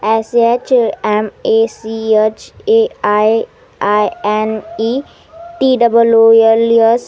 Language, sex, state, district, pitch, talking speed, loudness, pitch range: Marathi, female, Maharashtra, Washim, 230 Hz, 135 wpm, -13 LUFS, 220-265 Hz